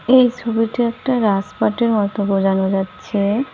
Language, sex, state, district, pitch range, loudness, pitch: Bengali, male, West Bengal, Cooch Behar, 195-240 Hz, -18 LUFS, 215 Hz